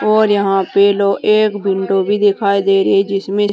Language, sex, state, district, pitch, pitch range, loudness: Hindi, female, Uttar Pradesh, Saharanpur, 200 Hz, 195-205 Hz, -14 LUFS